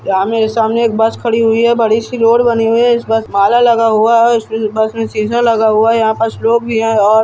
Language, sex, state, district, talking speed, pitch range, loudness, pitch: Hindi, male, Bihar, Araria, 290 wpm, 220-230 Hz, -12 LUFS, 225 Hz